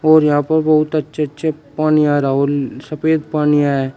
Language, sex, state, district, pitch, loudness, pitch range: Hindi, male, Uttar Pradesh, Shamli, 150 Hz, -16 LUFS, 145-155 Hz